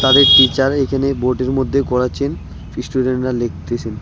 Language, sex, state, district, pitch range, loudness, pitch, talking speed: Bengali, male, West Bengal, Alipurduar, 125-135 Hz, -15 LUFS, 130 Hz, 120 wpm